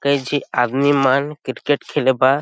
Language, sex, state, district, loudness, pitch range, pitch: Chhattisgarhi, male, Chhattisgarh, Sarguja, -18 LUFS, 130-145 Hz, 140 Hz